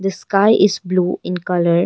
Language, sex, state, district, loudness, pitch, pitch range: English, female, Arunachal Pradesh, Longding, -16 LUFS, 180 Hz, 180-195 Hz